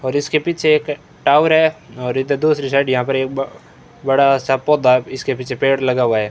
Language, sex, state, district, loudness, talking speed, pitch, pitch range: Hindi, male, Rajasthan, Bikaner, -16 LUFS, 200 wpm, 135 Hz, 130-150 Hz